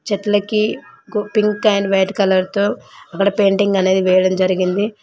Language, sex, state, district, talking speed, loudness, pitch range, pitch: Telugu, female, Telangana, Mahabubabad, 130 wpm, -16 LUFS, 190-210 Hz, 200 Hz